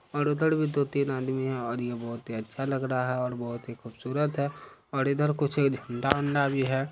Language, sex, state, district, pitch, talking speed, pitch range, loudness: Hindi, male, Bihar, Saharsa, 135 Hz, 215 wpm, 125-145 Hz, -29 LUFS